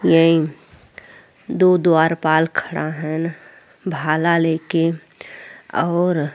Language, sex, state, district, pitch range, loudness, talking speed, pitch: Bhojpuri, female, Uttar Pradesh, Deoria, 160-170 Hz, -18 LUFS, 85 wpm, 165 Hz